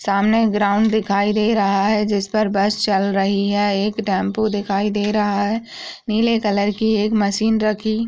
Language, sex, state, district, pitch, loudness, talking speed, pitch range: Hindi, female, Uttar Pradesh, Ghazipur, 210 Hz, -18 LUFS, 185 wpm, 200-220 Hz